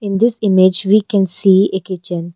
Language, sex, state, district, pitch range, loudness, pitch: English, female, Arunachal Pradesh, Longding, 185-200 Hz, -14 LUFS, 190 Hz